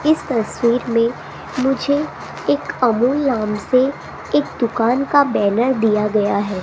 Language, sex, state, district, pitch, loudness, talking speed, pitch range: Hindi, female, Rajasthan, Jaipur, 240 Hz, -18 LUFS, 135 wpm, 220-270 Hz